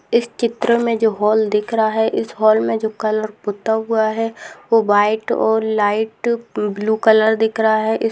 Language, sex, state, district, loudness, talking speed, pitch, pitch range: Hindi, female, Bihar, Begusarai, -17 LUFS, 200 wpm, 220 Hz, 215-225 Hz